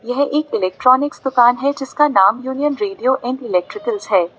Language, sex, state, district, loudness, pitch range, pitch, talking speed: Hindi, female, Uttar Pradesh, Lalitpur, -17 LUFS, 240-295 Hz, 260 Hz, 165 wpm